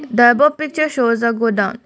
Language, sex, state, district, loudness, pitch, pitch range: English, female, Assam, Kamrup Metropolitan, -15 LUFS, 240 Hz, 230-295 Hz